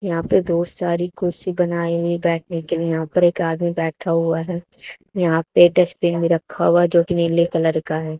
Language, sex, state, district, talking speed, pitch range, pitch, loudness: Hindi, female, Haryana, Charkhi Dadri, 205 wpm, 165-175 Hz, 170 Hz, -19 LUFS